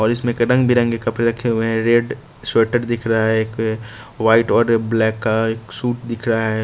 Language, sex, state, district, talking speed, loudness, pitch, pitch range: Hindi, male, Bihar, West Champaran, 215 wpm, -18 LUFS, 115 Hz, 110-120 Hz